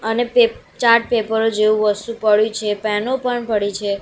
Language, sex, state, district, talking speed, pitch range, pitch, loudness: Gujarati, female, Gujarat, Gandhinagar, 180 wpm, 210-235 Hz, 220 Hz, -18 LUFS